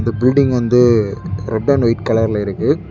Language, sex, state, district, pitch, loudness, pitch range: Tamil, male, Tamil Nadu, Kanyakumari, 115 Hz, -15 LUFS, 110-125 Hz